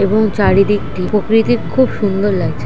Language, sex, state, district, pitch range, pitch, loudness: Bengali, female, West Bengal, Jhargram, 195-220 Hz, 205 Hz, -14 LUFS